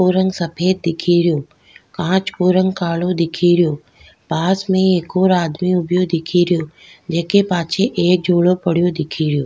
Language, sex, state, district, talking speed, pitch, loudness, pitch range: Rajasthani, female, Rajasthan, Nagaur, 140 wpm, 175 Hz, -17 LUFS, 170-185 Hz